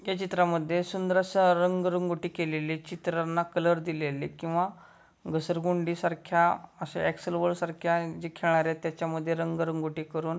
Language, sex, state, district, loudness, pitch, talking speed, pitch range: Marathi, male, Maharashtra, Solapur, -29 LUFS, 170 Hz, 125 wpm, 165-175 Hz